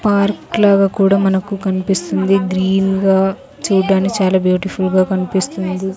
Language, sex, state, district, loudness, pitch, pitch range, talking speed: Telugu, female, Andhra Pradesh, Sri Satya Sai, -15 LUFS, 190 Hz, 185-195 Hz, 120 wpm